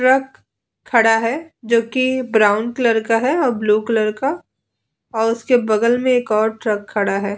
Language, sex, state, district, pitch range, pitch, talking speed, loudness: Hindi, female, Bihar, Vaishali, 215-255 Hz, 230 Hz, 180 wpm, -17 LUFS